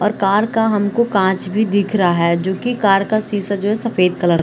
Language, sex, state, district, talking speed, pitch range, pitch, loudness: Hindi, female, Chhattisgarh, Bilaspur, 245 wpm, 190-215 Hz, 200 Hz, -16 LUFS